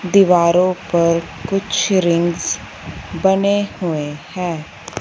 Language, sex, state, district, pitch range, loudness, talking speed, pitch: Hindi, female, Punjab, Fazilka, 170-190 Hz, -17 LUFS, 85 wpm, 175 Hz